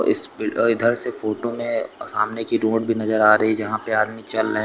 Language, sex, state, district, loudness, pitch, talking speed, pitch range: Hindi, male, Uttar Pradesh, Lucknow, -20 LUFS, 110 Hz, 260 wpm, 110-115 Hz